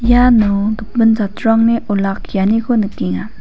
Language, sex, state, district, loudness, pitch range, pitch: Garo, female, Meghalaya, West Garo Hills, -14 LUFS, 200-230 Hz, 220 Hz